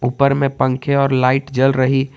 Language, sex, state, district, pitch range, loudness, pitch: Hindi, male, Jharkhand, Garhwa, 130-140 Hz, -16 LUFS, 135 Hz